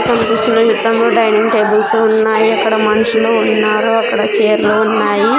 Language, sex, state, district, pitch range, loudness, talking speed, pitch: Telugu, female, Andhra Pradesh, Sri Satya Sai, 215-225 Hz, -12 LUFS, 110 wpm, 220 Hz